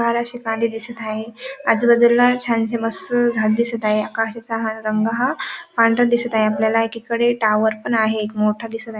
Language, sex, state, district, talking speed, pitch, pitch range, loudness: Marathi, female, Maharashtra, Dhule, 175 wpm, 225 Hz, 220-235 Hz, -19 LUFS